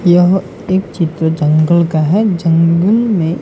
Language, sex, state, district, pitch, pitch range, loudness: Hindi, male, Gujarat, Gandhinagar, 170 Hz, 165-190 Hz, -13 LUFS